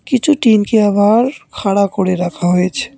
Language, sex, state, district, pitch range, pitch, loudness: Bengali, male, West Bengal, Cooch Behar, 190-245 Hz, 205 Hz, -14 LUFS